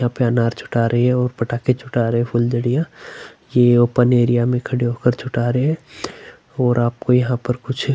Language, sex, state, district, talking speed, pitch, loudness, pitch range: Hindi, male, Chhattisgarh, Sukma, 195 wpm, 120 Hz, -18 LUFS, 120-125 Hz